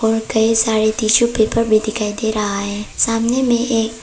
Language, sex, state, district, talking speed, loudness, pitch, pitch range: Hindi, female, Arunachal Pradesh, Papum Pare, 195 wpm, -16 LUFS, 220 Hz, 215-230 Hz